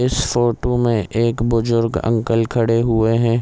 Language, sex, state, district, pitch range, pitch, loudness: Hindi, male, Chhattisgarh, Raigarh, 115-120 Hz, 115 Hz, -18 LUFS